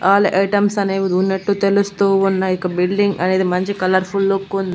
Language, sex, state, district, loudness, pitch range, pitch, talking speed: Telugu, female, Andhra Pradesh, Annamaya, -17 LUFS, 185-200 Hz, 195 Hz, 175 wpm